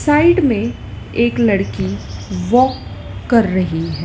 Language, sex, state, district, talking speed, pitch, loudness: Hindi, female, Madhya Pradesh, Dhar, 120 wpm, 185 Hz, -16 LUFS